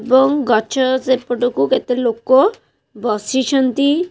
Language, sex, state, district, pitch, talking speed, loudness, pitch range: Odia, female, Odisha, Khordha, 260 Hz, 85 wpm, -16 LUFS, 240-270 Hz